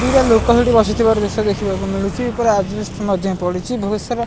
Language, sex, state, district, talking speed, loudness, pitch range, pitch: Odia, male, Odisha, Malkangiri, 195 wpm, -17 LUFS, 195-235 Hz, 210 Hz